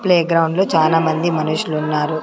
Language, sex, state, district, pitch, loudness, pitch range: Telugu, female, Andhra Pradesh, Sri Satya Sai, 160 Hz, -17 LUFS, 155-170 Hz